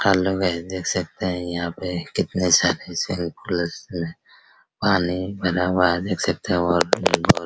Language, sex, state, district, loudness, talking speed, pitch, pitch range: Hindi, male, Bihar, Araria, -22 LUFS, 175 wpm, 90 Hz, 85-95 Hz